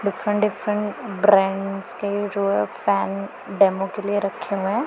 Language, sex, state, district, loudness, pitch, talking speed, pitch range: Hindi, female, Punjab, Pathankot, -22 LUFS, 200 Hz, 160 wpm, 195-205 Hz